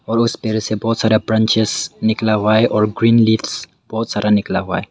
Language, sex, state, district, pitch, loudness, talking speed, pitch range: Hindi, male, Meghalaya, West Garo Hills, 110 Hz, -16 LUFS, 220 wpm, 110-115 Hz